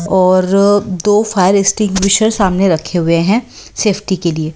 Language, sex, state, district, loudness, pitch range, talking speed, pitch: Hindi, female, Delhi, New Delhi, -12 LUFS, 180-205 Hz, 145 wpm, 195 Hz